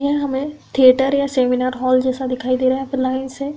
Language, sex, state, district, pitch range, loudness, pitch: Hindi, female, Uttar Pradesh, Hamirpur, 255-275 Hz, -18 LUFS, 260 Hz